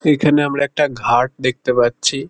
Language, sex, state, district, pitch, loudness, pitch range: Bengali, male, West Bengal, Kolkata, 135 Hz, -17 LUFS, 125-145 Hz